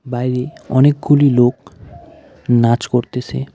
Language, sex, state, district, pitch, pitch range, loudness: Bengali, male, West Bengal, Alipurduar, 125 Hz, 120-130 Hz, -15 LUFS